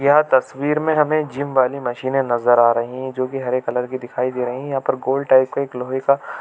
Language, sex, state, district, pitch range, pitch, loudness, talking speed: Hindi, male, Chhattisgarh, Bilaspur, 125-140 Hz, 130 Hz, -19 LUFS, 260 wpm